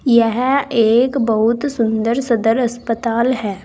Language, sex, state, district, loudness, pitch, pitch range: Hindi, female, Uttar Pradesh, Saharanpur, -16 LUFS, 235 Hz, 225-250 Hz